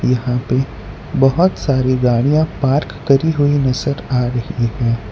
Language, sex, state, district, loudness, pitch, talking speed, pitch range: Hindi, male, Gujarat, Valsad, -16 LUFS, 130 Hz, 140 wpm, 125-145 Hz